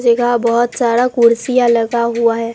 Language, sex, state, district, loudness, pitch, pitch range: Hindi, female, Bihar, Katihar, -14 LUFS, 235 Hz, 235-240 Hz